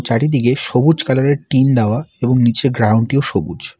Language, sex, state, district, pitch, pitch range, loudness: Bengali, male, West Bengal, Alipurduar, 130 Hz, 115-140 Hz, -15 LUFS